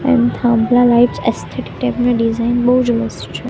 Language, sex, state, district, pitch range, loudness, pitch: Gujarati, female, Gujarat, Gandhinagar, 230-245 Hz, -15 LUFS, 240 Hz